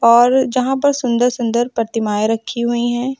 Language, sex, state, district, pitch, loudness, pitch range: Hindi, female, Uttar Pradesh, Lucknow, 240 Hz, -16 LUFS, 230-255 Hz